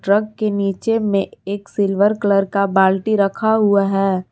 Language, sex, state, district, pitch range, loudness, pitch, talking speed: Hindi, female, Jharkhand, Garhwa, 195-210 Hz, -17 LUFS, 200 Hz, 165 wpm